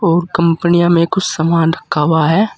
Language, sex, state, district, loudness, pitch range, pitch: Hindi, male, Uttar Pradesh, Saharanpur, -13 LUFS, 160-175 Hz, 170 Hz